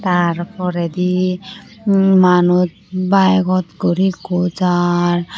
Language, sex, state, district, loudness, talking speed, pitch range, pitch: Chakma, female, Tripura, Unakoti, -16 LUFS, 90 wpm, 175-190 Hz, 180 Hz